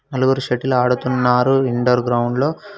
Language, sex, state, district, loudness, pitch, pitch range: Telugu, male, Telangana, Hyderabad, -17 LUFS, 125 Hz, 125-135 Hz